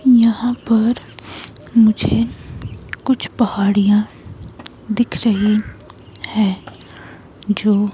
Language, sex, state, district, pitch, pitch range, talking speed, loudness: Hindi, female, Himachal Pradesh, Shimla, 215 Hz, 205-235 Hz, 60 wpm, -17 LUFS